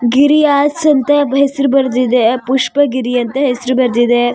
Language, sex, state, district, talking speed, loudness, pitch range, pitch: Kannada, female, Karnataka, Shimoga, 140 wpm, -12 LUFS, 245-285 Hz, 265 Hz